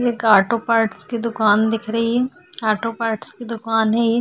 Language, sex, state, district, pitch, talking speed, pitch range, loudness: Hindi, female, Bihar, Vaishali, 230 Hz, 200 wpm, 220-235 Hz, -19 LUFS